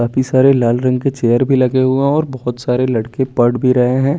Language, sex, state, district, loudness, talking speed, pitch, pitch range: Hindi, male, Chandigarh, Chandigarh, -14 LUFS, 260 wpm, 130 Hz, 125-130 Hz